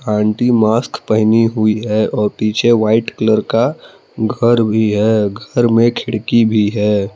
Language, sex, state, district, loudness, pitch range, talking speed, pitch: Hindi, male, Jharkhand, Palamu, -14 LUFS, 105-115 Hz, 150 wpm, 110 Hz